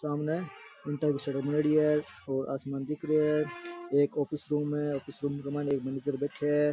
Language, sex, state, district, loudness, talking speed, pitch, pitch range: Rajasthani, male, Rajasthan, Nagaur, -31 LUFS, 205 wpm, 145 Hz, 140-150 Hz